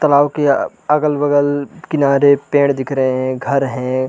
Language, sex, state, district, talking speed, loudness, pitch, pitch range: Hindi, male, Chhattisgarh, Balrampur, 175 wpm, -15 LUFS, 140 Hz, 135-145 Hz